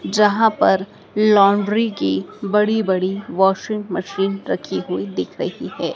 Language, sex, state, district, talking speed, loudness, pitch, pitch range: Hindi, female, Madhya Pradesh, Dhar, 130 wpm, -19 LUFS, 200 Hz, 185-210 Hz